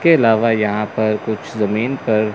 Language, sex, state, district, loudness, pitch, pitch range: Hindi, male, Chandigarh, Chandigarh, -17 LUFS, 110 Hz, 105-115 Hz